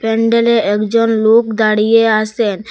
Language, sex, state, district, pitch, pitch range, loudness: Bengali, female, Assam, Hailakandi, 225 Hz, 215-230 Hz, -13 LUFS